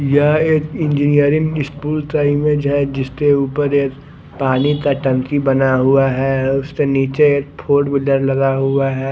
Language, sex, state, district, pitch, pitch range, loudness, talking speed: Hindi, male, Odisha, Khordha, 140 Hz, 135-145 Hz, -16 LUFS, 150 wpm